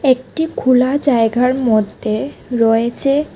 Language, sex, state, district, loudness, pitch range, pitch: Bengali, female, Tripura, West Tripura, -15 LUFS, 230-275 Hz, 250 Hz